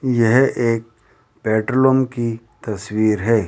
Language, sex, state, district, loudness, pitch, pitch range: Hindi, male, Rajasthan, Jaipur, -18 LUFS, 115 Hz, 110-125 Hz